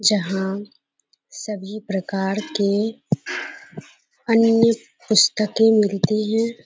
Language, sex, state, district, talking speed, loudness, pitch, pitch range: Hindi, female, Bihar, Bhagalpur, 70 wpm, -20 LUFS, 215 Hz, 200-225 Hz